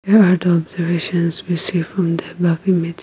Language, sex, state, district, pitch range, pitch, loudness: English, female, Nagaland, Kohima, 170-185 Hz, 175 Hz, -17 LUFS